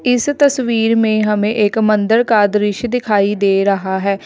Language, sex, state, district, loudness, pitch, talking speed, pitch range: Hindi, female, Uttar Pradesh, Lalitpur, -14 LUFS, 215 Hz, 170 wpm, 205-235 Hz